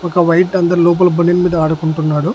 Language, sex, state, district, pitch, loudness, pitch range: Telugu, male, Andhra Pradesh, Annamaya, 175 Hz, -13 LUFS, 160-180 Hz